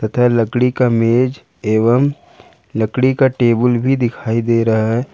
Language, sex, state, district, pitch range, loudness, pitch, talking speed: Hindi, male, Jharkhand, Ranchi, 115-125 Hz, -15 LUFS, 120 Hz, 165 wpm